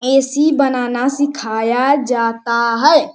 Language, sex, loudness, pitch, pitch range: Hindi, male, -15 LUFS, 260 Hz, 235-285 Hz